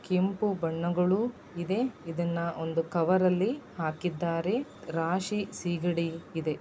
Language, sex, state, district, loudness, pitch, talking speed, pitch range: Kannada, female, Karnataka, Dakshina Kannada, -30 LUFS, 175 Hz, 90 wpm, 165-190 Hz